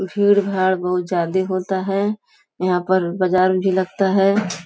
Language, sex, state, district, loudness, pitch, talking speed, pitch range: Hindi, female, Uttar Pradesh, Gorakhpur, -19 LUFS, 190 Hz, 140 wpm, 185-195 Hz